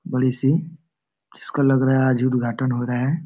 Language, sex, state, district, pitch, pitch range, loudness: Hindi, male, Jharkhand, Jamtara, 130 Hz, 125-145 Hz, -21 LUFS